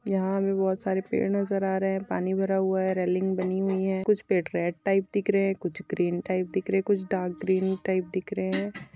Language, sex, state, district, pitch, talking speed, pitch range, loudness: Hindi, female, Maharashtra, Dhule, 190 Hz, 240 wpm, 185-195 Hz, -27 LUFS